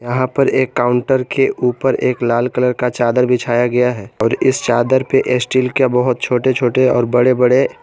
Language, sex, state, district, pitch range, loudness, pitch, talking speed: Hindi, male, Jharkhand, Garhwa, 120-130 Hz, -15 LUFS, 125 Hz, 200 wpm